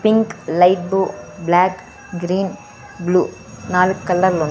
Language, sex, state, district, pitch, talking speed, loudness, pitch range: Telugu, female, Andhra Pradesh, Sri Satya Sai, 185 Hz, 120 wpm, -18 LUFS, 180-190 Hz